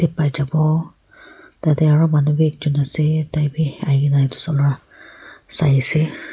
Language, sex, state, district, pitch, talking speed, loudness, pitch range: Nagamese, female, Nagaland, Kohima, 150 Hz, 115 wpm, -17 LUFS, 145-155 Hz